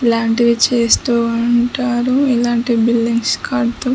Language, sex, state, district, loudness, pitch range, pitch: Telugu, female, Andhra Pradesh, Chittoor, -15 LUFS, 230-240 Hz, 235 Hz